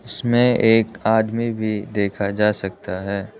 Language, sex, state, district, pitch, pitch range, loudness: Hindi, male, Arunachal Pradesh, Lower Dibang Valley, 110 Hz, 100-115 Hz, -20 LUFS